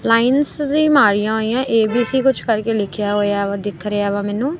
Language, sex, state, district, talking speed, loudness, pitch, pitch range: Punjabi, female, Punjab, Kapurthala, 180 wpm, -17 LUFS, 220 Hz, 205-260 Hz